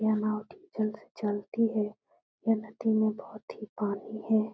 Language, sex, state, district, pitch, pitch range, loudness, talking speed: Hindi, female, Uttar Pradesh, Etah, 215 Hz, 215-220 Hz, -31 LUFS, 170 wpm